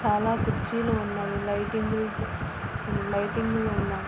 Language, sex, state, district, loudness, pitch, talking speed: Telugu, female, Andhra Pradesh, Guntur, -28 LUFS, 200 Hz, 105 wpm